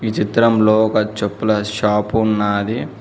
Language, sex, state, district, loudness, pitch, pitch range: Telugu, male, Telangana, Mahabubabad, -17 LUFS, 110 Hz, 105-110 Hz